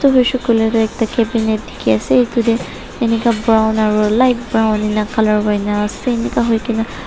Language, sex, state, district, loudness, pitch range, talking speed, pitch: Nagamese, female, Nagaland, Dimapur, -15 LUFS, 215-235 Hz, 170 wpm, 225 Hz